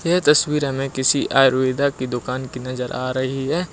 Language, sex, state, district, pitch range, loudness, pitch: Hindi, male, Uttar Pradesh, Lucknow, 130-140 Hz, -20 LUFS, 130 Hz